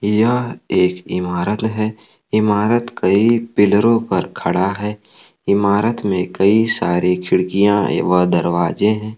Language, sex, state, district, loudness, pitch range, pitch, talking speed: Hindi, male, Jharkhand, Palamu, -16 LUFS, 90-110 Hz, 105 Hz, 120 wpm